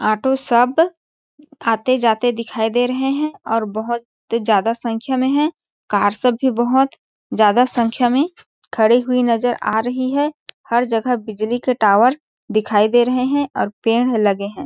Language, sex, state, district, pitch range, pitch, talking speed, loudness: Hindi, female, Chhattisgarh, Balrampur, 225-260 Hz, 240 Hz, 165 wpm, -18 LUFS